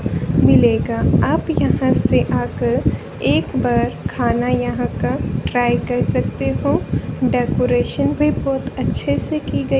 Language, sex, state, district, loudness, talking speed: Hindi, female, Haryana, Rohtak, -18 LUFS, 130 wpm